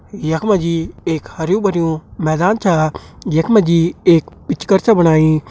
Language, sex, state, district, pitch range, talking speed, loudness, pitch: Hindi, male, Uttarakhand, Tehri Garhwal, 160-195 Hz, 165 wpm, -15 LUFS, 165 Hz